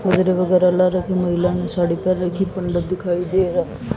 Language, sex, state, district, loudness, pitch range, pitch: Hindi, female, Haryana, Jhajjar, -19 LUFS, 180-185 Hz, 180 Hz